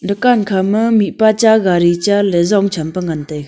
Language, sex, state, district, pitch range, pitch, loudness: Wancho, female, Arunachal Pradesh, Longding, 175-215 Hz, 200 Hz, -13 LUFS